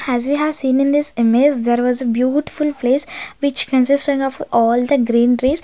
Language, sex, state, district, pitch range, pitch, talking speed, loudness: English, female, Maharashtra, Gondia, 245-285 Hz, 265 Hz, 200 wpm, -16 LUFS